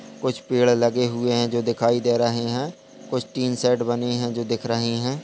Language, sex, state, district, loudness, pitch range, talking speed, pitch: Hindi, male, Bihar, Purnia, -23 LUFS, 120-125 Hz, 215 wpm, 120 Hz